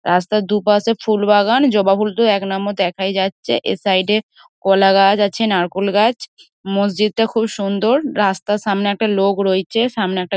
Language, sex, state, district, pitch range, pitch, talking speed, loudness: Bengali, female, West Bengal, Dakshin Dinajpur, 195-220 Hz, 205 Hz, 160 wpm, -16 LUFS